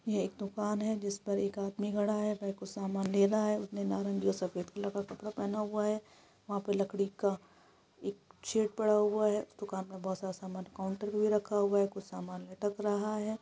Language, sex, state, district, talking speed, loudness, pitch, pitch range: Hindi, female, Bihar, Supaul, 235 wpm, -34 LUFS, 200 Hz, 195-210 Hz